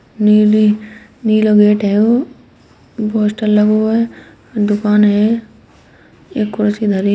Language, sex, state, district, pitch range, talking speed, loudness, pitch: Hindi, female, Uttar Pradesh, Etah, 210-220 Hz, 125 wpm, -13 LUFS, 215 Hz